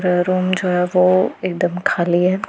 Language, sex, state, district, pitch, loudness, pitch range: Hindi, female, Punjab, Pathankot, 180 Hz, -17 LUFS, 180-185 Hz